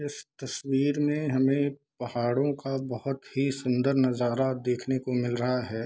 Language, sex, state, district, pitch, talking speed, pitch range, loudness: Hindi, male, Bihar, Darbhanga, 130 Hz, 155 wpm, 125-140 Hz, -28 LUFS